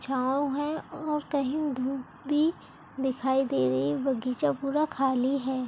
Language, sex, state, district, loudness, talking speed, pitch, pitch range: Hindi, female, Chhattisgarh, Bilaspur, -28 LUFS, 150 wpm, 270 Hz, 260-295 Hz